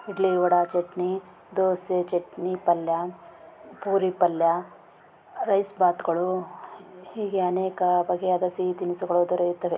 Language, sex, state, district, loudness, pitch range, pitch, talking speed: Kannada, female, Karnataka, Raichur, -25 LUFS, 175-190 Hz, 180 Hz, 105 wpm